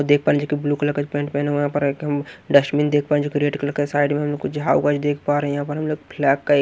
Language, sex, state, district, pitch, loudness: Hindi, male, Maharashtra, Washim, 145 Hz, -21 LUFS